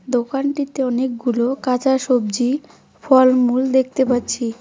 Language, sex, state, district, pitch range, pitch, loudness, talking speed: Bengali, female, West Bengal, Cooch Behar, 245-265 Hz, 255 Hz, -18 LUFS, 90 wpm